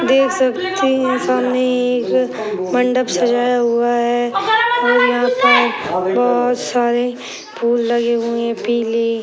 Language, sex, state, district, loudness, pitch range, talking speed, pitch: Hindi, female, Uttar Pradesh, Gorakhpur, -16 LUFS, 235-250 Hz, 125 wpm, 245 Hz